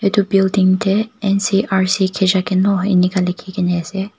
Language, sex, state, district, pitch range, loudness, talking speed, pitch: Nagamese, female, Nagaland, Kohima, 185-200 Hz, -16 LUFS, 130 wpm, 190 Hz